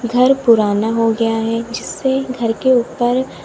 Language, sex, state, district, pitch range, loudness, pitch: Hindi, female, Uttar Pradesh, Lalitpur, 225-255 Hz, -16 LUFS, 235 Hz